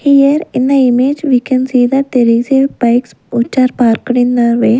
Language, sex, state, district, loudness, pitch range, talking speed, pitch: English, female, Punjab, Kapurthala, -11 LUFS, 240-270 Hz, 225 wpm, 255 Hz